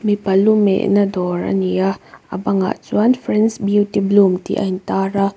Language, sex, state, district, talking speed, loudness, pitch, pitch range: Mizo, female, Mizoram, Aizawl, 190 wpm, -17 LUFS, 200 Hz, 190-205 Hz